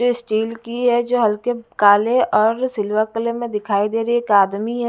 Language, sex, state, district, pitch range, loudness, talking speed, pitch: Hindi, female, Haryana, Jhajjar, 210-240 Hz, -18 LUFS, 220 wpm, 230 Hz